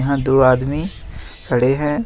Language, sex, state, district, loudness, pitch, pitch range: Hindi, male, Jharkhand, Ranchi, -16 LUFS, 130 Hz, 110-140 Hz